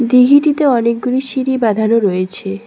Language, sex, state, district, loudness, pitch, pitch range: Bengali, female, West Bengal, Cooch Behar, -13 LUFS, 245 Hz, 220-260 Hz